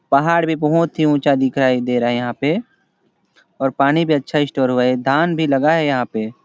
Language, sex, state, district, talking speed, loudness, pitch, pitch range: Hindi, male, Chhattisgarh, Sarguja, 235 wpm, -17 LUFS, 140 Hz, 125-155 Hz